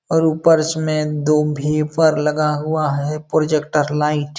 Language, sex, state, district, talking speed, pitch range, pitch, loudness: Hindi, male, Uttar Pradesh, Jalaun, 150 wpm, 150-155 Hz, 155 Hz, -18 LUFS